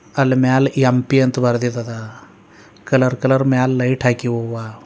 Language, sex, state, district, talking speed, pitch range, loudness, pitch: Kannada, male, Karnataka, Bidar, 125 wpm, 120-130 Hz, -17 LUFS, 125 Hz